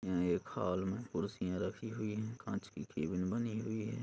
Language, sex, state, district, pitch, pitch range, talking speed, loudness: Hindi, male, Uttar Pradesh, Budaun, 105 Hz, 90-110 Hz, 210 wpm, -39 LUFS